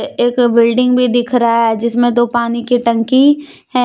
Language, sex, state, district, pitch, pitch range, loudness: Hindi, female, Jharkhand, Deoghar, 240 Hz, 235-250 Hz, -13 LUFS